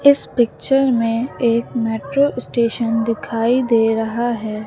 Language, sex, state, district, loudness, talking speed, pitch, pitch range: Hindi, female, Uttar Pradesh, Lucknow, -18 LUFS, 130 wpm, 235 Hz, 225-250 Hz